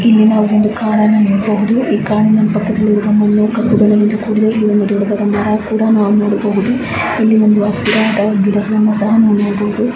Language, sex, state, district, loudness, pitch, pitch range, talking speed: Kannada, female, Karnataka, Bijapur, -12 LUFS, 210 Hz, 210-215 Hz, 110 wpm